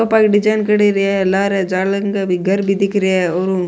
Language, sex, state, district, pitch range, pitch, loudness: Rajasthani, male, Rajasthan, Nagaur, 190-205 Hz, 195 Hz, -15 LUFS